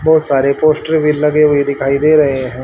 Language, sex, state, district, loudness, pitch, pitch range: Hindi, male, Haryana, Rohtak, -12 LUFS, 150 Hz, 140-155 Hz